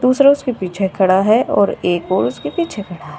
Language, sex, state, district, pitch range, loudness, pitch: Hindi, female, Uttar Pradesh, Shamli, 185-255 Hz, -16 LUFS, 200 Hz